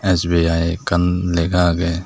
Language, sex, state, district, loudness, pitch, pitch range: Chakma, male, Tripura, Dhalai, -18 LUFS, 85 Hz, 85-90 Hz